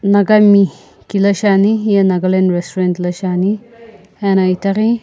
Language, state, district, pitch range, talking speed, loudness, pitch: Sumi, Nagaland, Kohima, 185-210 Hz, 130 wpm, -14 LUFS, 200 Hz